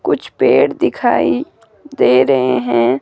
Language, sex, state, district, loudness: Hindi, female, Himachal Pradesh, Shimla, -14 LUFS